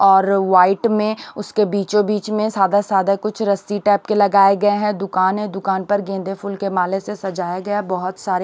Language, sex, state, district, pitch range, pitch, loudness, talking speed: Hindi, female, Bihar, Kaimur, 195-205 Hz, 200 Hz, -18 LUFS, 215 wpm